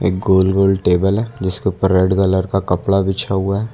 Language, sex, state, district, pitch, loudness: Hindi, male, Uttar Pradesh, Lucknow, 95 Hz, -16 LUFS